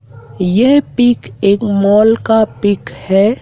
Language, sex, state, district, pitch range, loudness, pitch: Hindi, male, Madhya Pradesh, Dhar, 195-225 Hz, -12 LUFS, 205 Hz